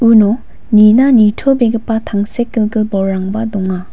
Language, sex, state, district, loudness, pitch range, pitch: Garo, female, Meghalaya, West Garo Hills, -12 LUFS, 205-230 Hz, 215 Hz